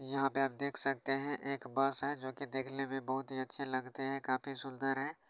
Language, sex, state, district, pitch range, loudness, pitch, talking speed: Hindi, male, Bihar, Araria, 135-140 Hz, -34 LUFS, 135 Hz, 240 wpm